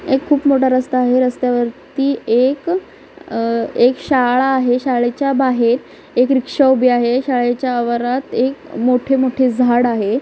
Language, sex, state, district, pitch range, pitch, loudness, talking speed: Marathi, female, Maharashtra, Nagpur, 245-270 Hz, 255 Hz, -16 LUFS, 135 wpm